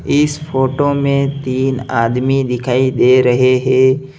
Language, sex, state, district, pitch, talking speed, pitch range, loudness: Hindi, male, Uttar Pradesh, Lalitpur, 130 Hz, 130 wpm, 130-140 Hz, -14 LUFS